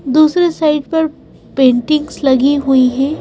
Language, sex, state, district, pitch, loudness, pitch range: Hindi, female, Madhya Pradesh, Bhopal, 290 Hz, -13 LUFS, 265-310 Hz